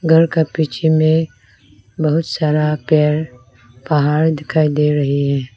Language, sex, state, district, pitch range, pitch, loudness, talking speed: Hindi, female, Arunachal Pradesh, Lower Dibang Valley, 135-160 Hz, 150 Hz, -16 LUFS, 130 wpm